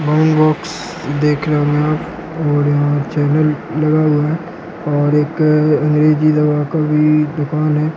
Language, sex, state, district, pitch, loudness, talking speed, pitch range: Hindi, male, Bihar, Jamui, 150 Hz, -15 LUFS, 130 wpm, 150-155 Hz